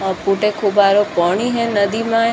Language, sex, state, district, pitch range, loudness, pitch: Marwari, female, Rajasthan, Churu, 195-225 Hz, -16 LUFS, 205 Hz